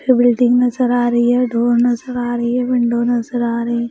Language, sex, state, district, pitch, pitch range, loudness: Hindi, female, Bihar, Patna, 240 Hz, 235-245 Hz, -16 LUFS